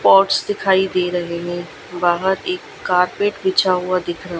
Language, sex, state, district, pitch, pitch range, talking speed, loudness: Hindi, female, Gujarat, Gandhinagar, 185 Hz, 175-195 Hz, 165 wpm, -18 LUFS